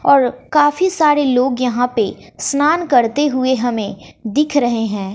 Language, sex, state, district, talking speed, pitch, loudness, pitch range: Hindi, female, Bihar, West Champaran, 150 wpm, 260 Hz, -16 LUFS, 240-295 Hz